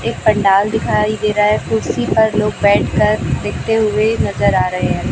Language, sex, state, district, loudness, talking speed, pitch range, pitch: Hindi, male, Chhattisgarh, Raipur, -15 LUFS, 190 wpm, 195-215 Hz, 210 Hz